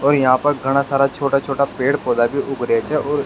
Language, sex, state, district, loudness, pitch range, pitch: Rajasthani, male, Rajasthan, Nagaur, -18 LUFS, 135-145 Hz, 140 Hz